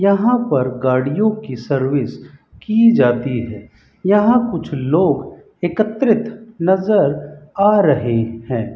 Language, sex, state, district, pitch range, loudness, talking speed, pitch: Hindi, male, Rajasthan, Bikaner, 130-215 Hz, -17 LUFS, 110 wpm, 160 Hz